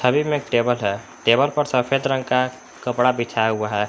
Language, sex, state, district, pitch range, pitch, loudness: Hindi, male, Jharkhand, Palamu, 115-135 Hz, 125 Hz, -21 LUFS